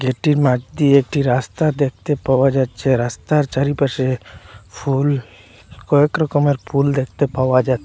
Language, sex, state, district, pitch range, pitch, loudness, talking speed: Bengali, male, Assam, Hailakandi, 125-145 Hz, 135 Hz, -18 LUFS, 130 wpm